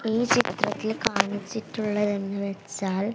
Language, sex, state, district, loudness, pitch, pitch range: Malayalam, female, Kerala, Kasaragod, -26 LUFS, 205 Hz, 200-220 Hz